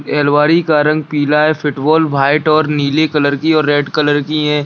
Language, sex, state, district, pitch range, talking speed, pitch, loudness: Hindi, male, Bihar, Jahanabad, 145-155 Hz, 220 wpm, 150 Hz, -13 LUFS